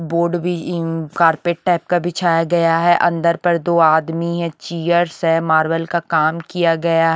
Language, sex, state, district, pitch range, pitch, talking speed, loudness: Hindi, female, Haryana, Rohtak, 165-175 Hz, 170 Hz, 185 wpm, -17 LUFS